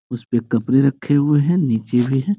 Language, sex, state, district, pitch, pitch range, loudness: Hindi, male, Bihar, Sitamarhi, 135 Hz, 120-145 Hz, -18 LUFS